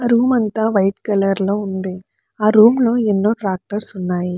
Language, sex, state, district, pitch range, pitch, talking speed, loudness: Telugu, female, Andhra Pradesh, Chittoor, 195-220 Hz, 205 Hz, 165 wpm, -17 LUFS